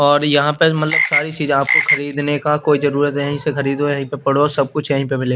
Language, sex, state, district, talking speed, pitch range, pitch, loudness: Hindi, male, Chandigarh, Chandigarh, 245 wpm, 140-150 Hz, 145 Hz, -16 LUFS